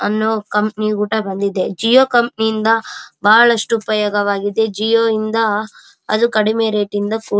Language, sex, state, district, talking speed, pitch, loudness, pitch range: Kannada, female, Karnataka, Bellary, 130 wpm, 215 Hz, -16 LUFS, 210-225 Hz